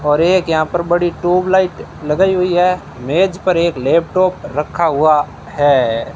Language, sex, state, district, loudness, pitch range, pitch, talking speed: Hindi, male, Rajasthan, Bikaner, -15 LUFS, 150-185 Hz, 170 Hz, 145 wpm